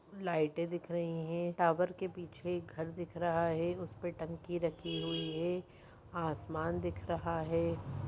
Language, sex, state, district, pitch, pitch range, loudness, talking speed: Hindi, female, Chhattisgarh, Raigarh, 170 Hz, 160-175 Hz, -37 LUFS, 155 wpm